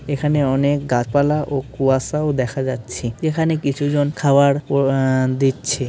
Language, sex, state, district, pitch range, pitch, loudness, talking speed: Bengali, male, West Bengal, Malda, 130-145 Hz, 140 Hz, -19 LUFS, 145 wpm